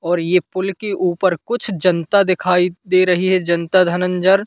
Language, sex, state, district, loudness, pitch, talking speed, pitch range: Hindi, male, Madhya Pradesh, Katni, -17 LUFS, 185 Hz, 175 wpm, 180-190 Hz